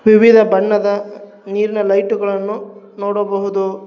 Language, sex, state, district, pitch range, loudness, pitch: Kannada, male, Karnataka, Bangalore, 200-210 Hz, -15 LUFS, 205 Hz